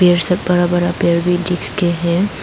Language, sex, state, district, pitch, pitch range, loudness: Hindi, female, Arunachal Pradesh, Papum Pare, 175 Hz, 170-180 Hz, -16 LUFS